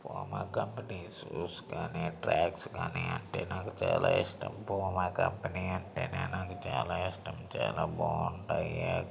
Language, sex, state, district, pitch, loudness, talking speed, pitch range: Telugu, male, Andhra Pradesh, Srikakulam, 95 Hz, -35 LUFS, 120 wpm, 90-95 Hz